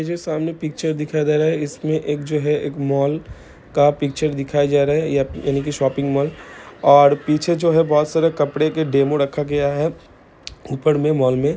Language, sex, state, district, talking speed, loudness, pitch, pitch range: Hindi, male, Bihar, Gopalganj, 205 wpm, -19 LUFS, 150 Hz, 140-155 Hz